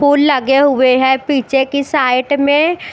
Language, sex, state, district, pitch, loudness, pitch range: Hindi, female, Chandigarh, Chandigarh, 280 Hz, -13 LUFS, 265-290 Hz